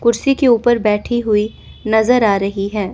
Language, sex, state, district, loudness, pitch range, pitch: Hindi, female, Chandigarh, Chandigarh, -15 LUFS, 210-240 Hz, 220 Hz